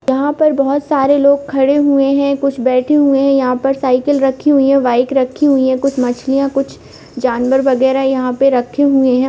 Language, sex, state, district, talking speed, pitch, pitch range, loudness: Hindi, female, Uttar Pradesh, Budaun, 205 wpm, 270 Hz, 260-280 Hz, -13 LUFS